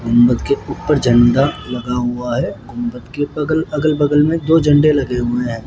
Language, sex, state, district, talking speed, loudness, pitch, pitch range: Hindi, male, Rajasthan, Jaipur, 190 wpm, -16 LUFS, 130 Hz, 120-150 Hz